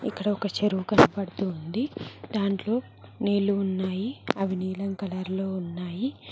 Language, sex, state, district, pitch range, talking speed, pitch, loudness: Telugu, female, Telangana, Mahabubabad, 190-210 Hz, 125 wpm, 195 Hz, -27 LUFS